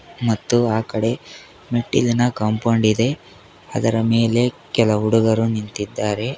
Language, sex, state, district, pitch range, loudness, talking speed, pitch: Kannada, male, Karnataka, Koppal, 110-120 Hz, -19 LUFS, 105 wpm, 115 Hz